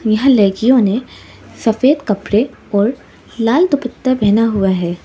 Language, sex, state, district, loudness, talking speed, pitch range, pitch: Hindi, female, Arunachal Pradesh, Lower Dibang Valley, -14 LUFS, 130 wpm, 205-255 Hz, 225 Hz